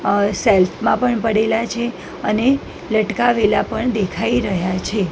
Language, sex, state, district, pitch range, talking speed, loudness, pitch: Gujarati, female, Gujarat, Gandhinagar, 200-235 Hz, 140 wpm, -18 LUFS, 220 Hz